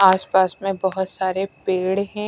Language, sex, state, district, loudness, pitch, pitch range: Hindi, female, Punjab, Kapurthala, -21 LUFS, 190 Hz, 185-195 Hz